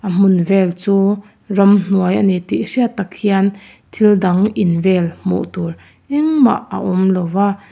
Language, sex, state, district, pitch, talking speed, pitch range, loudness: Mizo, female, Mizoram, Aizawl, 195 Hz, 170 wpm, 185-205 Hz, -15 LUFS